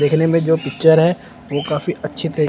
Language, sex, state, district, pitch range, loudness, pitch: Hindi, male, Chandigarh, Chandigarh, 150-165 Hz, -17 LUFS, 160 Hz